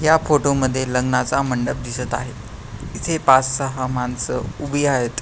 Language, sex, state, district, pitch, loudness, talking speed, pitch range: Marathi, male, Maharashtra, Pune, 130 Hz, -20 LUFS, 150 wpm, 125-140 Hz